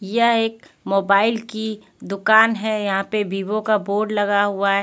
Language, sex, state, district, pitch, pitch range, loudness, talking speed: Hindi, female, Punjab, Pathankot, 210 Hz, 200-220 Hz, -19 LUFS, 175 wpm